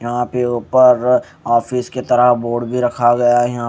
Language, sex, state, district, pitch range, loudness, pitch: Hindi, male, Haryana, Charkhi Dadri, 120-125 Hz, -15 LUFS, 120 Hz